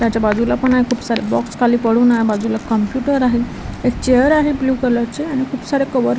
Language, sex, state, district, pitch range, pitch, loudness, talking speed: Marathi, female, Maharashtra, Washim, 230-260 Hz, 245 Hz, -16 LUFS, 235 wpm